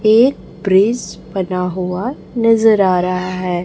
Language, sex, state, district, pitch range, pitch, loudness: Hindi, female, Chhattisgarh, Raipur, 185-225 Hz, 190 Hz, -16 LUFS